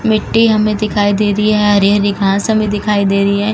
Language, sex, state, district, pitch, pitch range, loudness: Hindi, female, Uttar Pradesh, Jalaun, 210 Hz, 205-215 Hz, -13 LUFS